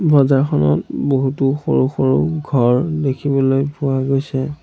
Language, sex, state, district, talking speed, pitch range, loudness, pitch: Assamese, male, Assam, Sonitpur, 105 wpm, 130-145 Hz, -17 LUFS, 135 Hz